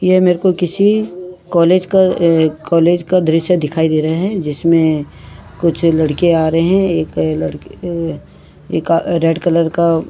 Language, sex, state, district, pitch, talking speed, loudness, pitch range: Hindi, female, Uttarakhand, Tehri Garhwal, 165 Hz, 155 wpm, -14 LUFS, 155-180 Hz